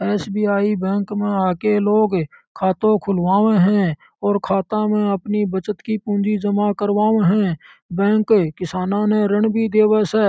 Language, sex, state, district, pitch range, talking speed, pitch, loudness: Marwari, male, Rajasthan, Churu, 195-210 Hz, 145 wpm, 205 Hz, -18 LUFS